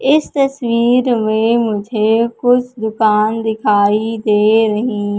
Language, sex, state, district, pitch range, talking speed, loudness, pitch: Hindi, female, Madhya Pradesh, Katni, 215-240 Hz, 105 wpm, -14 LUFS, 225 Hz